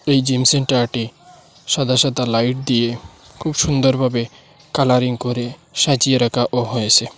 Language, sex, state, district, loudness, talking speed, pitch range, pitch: Bengali, male, Assam, Hailakandi, -17 LUFS, 115 wpm, 120-140 Hz, 125 Hz